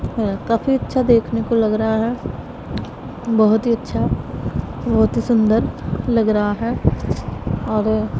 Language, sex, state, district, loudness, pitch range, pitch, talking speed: Hindi, female, Punjab, Pathankot, -19 LUFS, 215-235 Hz, 225 Hz, 130 wpm